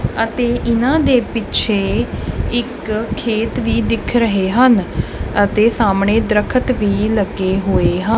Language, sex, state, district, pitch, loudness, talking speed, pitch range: Punjabi, male, Punjab, Kapurthala, 220 Hz, -16 LUFS, 125 wpm, 205-240 Hz